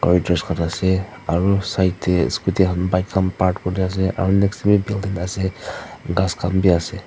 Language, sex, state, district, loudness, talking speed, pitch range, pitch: Nagamese, female, Nagaland, Dimapur, -20 LUFS, 195 wpm, 90-95 Hz, 95 Hz